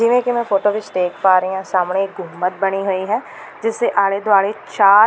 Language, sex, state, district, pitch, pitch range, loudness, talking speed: Punjabi, female, Delhi, New Delhi, 195 Hz, 190-215 Hz, -18 LUFS, 235 wpm